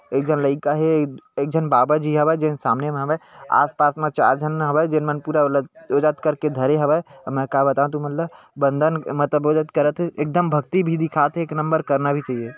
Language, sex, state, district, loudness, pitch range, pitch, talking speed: Chhattisgarhi, male, Chhattisgarh, Bilaspur, -20 LUFS, 140-155 Hz, 150 Hz, 240 wpm